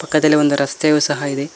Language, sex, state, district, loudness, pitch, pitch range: Kannada, male, Karnataka, Koppal, -16 LUFS, 150 Hz, 140-155 Hz